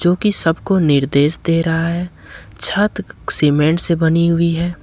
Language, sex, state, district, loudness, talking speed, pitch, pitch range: Hindi, male, Jharkhand, Ranchi, -15 LUFS, 160 wpm, 170 Hz, 160-175 Hz